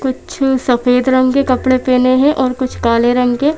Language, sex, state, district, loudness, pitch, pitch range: Hindi, female, Madhya Pradesh, Bhopal, -13 LUFS, 255 Hz, 250-265 Hz